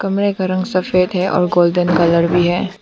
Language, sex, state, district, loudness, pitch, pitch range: Hindi, female, Arunachal Pradesh, Papum Pare, -15 LUFS, 180 Hz, 175-185 Hz